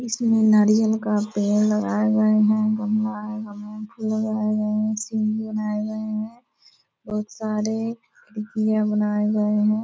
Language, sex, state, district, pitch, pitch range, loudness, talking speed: Hindi, female, Bihar, Purnia, 215 Hz, 210-215 Hz, -22 LUFS, 165 wpm